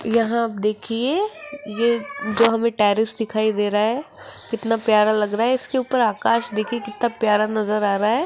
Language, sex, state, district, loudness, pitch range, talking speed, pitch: Hindi, female, Rajasthan, Jaipur, -20 LUFS, 215-235 Hz, 190 wpm, 225 Hz